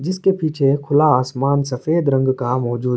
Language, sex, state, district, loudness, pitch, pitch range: Urdu, male, Uttar Pradesh, Budaun, -18 LUFS, 140 Hz, 125-155 Hz